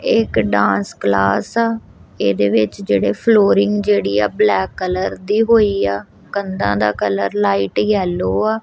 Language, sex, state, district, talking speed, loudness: Punjabi, female, Punjab, Kapurthala, 155 wpm, -16 LUFS